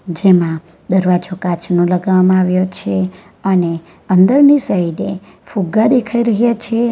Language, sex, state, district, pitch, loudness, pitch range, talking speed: Gujarati, female, Gujarat, Valsad, 185 Hz, -14 LUFS, 175-220 Hz, 115 wpm